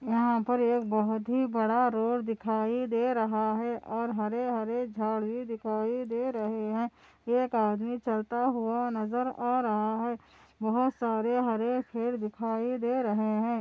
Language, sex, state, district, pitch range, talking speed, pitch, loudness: Hindi, female, Andhra Pradesh, Anantapur, 220-245 Hz, 155 wpm, 230 Hz, -30 LUFS